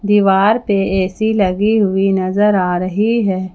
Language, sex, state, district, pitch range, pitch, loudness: Hindi, female, Jharkhand, Palamu, 190-210 Hz, 195 Hz, -15 LUFS